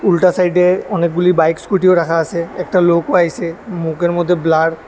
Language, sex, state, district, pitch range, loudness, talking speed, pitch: Bengali, male, Tripura, West Tripura, 165-180 Hz, -15 LUFS, 195 wpm, 175 Hz